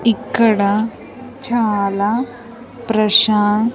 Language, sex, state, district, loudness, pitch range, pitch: Telugu, female, Andhra Pradesh, Sri Satya Sai, -15 LUFS, 210-240 Hz, 225 Hz